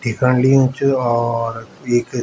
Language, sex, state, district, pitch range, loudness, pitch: Garhwali, male, Uttarakhand, Tehri Garhwal, 115-130 Hz, -17 LUFS, 120 Hz